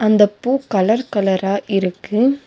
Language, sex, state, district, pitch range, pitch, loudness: Tamil, female, Tamil Nadu, Nilgiris, 195-245 Hz, 210 Hz, -17 LUFS